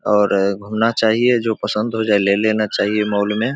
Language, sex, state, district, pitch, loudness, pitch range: Hindi, male, Bihar, Supaul, 105 Hz, -17 LUFS, 100-110 Hz